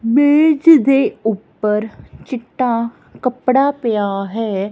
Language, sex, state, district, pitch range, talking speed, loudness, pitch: Punjabi, female, Punjab, Kapurthala, 215-270 Hz, 90 wpm, -15 LUFS, 240 Hz